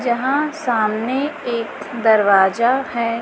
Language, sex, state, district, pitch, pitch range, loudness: Hindi, female, Chhattisgarh, Raipur, 235 Hz, 220-260 Hz, -18 LUFS